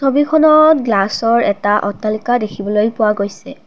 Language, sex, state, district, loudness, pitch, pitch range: Assamese, female, Assam, Kamrup Metropolitan, -14 LUFS, 215 Hz, 205-270 Hz